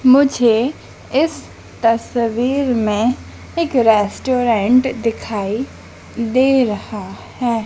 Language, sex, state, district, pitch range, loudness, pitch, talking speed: Hindi, female, Madhya Pradesh, Dhar, 225-260 Hz, -17 LUFS, 240 Hz, 80 wpm